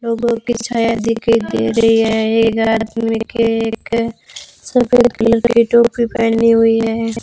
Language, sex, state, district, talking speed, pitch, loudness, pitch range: Hindi, female, Rajasthan, Bikaner, 140 wpm, 230 Hz, -15 LUFS, 225-235 Hz